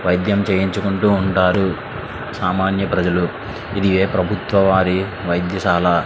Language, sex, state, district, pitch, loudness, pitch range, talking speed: Telugu, male, Andhra Pradesh, Srikakulam, 95 Hz, -18 LUFS, 90-100 Hz, 110 wpm